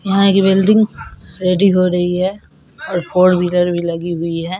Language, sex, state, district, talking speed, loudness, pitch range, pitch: Hindi, female, Bihar, Purnia, 170 wpm, -15 LUFS, 175-195 Hz, 185 Hz